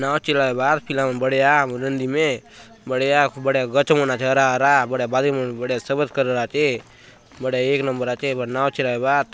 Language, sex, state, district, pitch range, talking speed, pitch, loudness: Halbi, male, Chhattisgarh, Bastar, 130-140 Hz, 200 wpm, 135 Hz, -20 LUFS